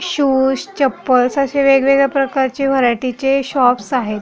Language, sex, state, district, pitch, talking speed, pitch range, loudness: Marathi, female, Maharashtra, Pune, 270 Hz, 115 wpm, 255-275 Hz, -15 LUFS